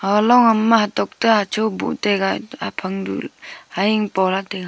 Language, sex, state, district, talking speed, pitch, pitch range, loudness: Wancho, female, Arunachal Pradesh, Longding, 165 wpm, 210 Hz, 195-220 Hz, -18 LUFS